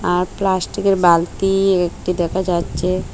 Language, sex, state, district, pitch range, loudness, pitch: Bengali, female, Assam, Hailakandi, 175-195 Hz, -18 LUFS, 185 Hz